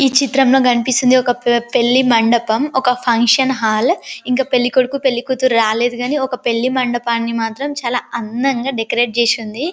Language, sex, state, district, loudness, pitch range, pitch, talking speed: Telugu, female, Telangana, Karimnagar, -15 LUFS, 235-265 Hz, 245 Hz, 140 wpm